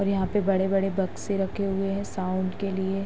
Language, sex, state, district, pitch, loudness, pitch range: Hindi, female, Uttar Pradesh, Hamirpur, 195 Hz, -27 LUFS, 190-195 Hz